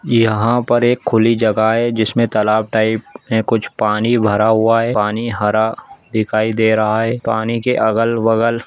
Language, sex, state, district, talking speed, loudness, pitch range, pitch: Hindi, male, Chhattisgarh, Bilaspur, 175 wpm, -15 LUFS, 110-115 Hz, 110 Hz